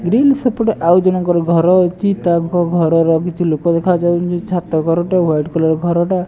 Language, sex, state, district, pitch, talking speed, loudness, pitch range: Odia, male, Odisha, Nuapada, 175 Hz, 155 wpm, -14 LUFS, 165-180 Hz